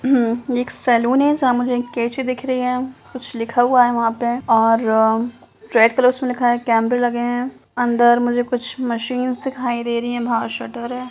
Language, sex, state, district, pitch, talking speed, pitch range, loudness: Hindi, female, Bihar, Sitamarhi, 245 Hz, 210 wpm, 235-250 Hz, -18 LUFS